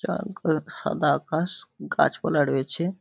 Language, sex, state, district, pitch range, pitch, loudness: Bengali, male, West Bengal, Kolkata, 150-185 Hz, 160 Hz, -25 LUFS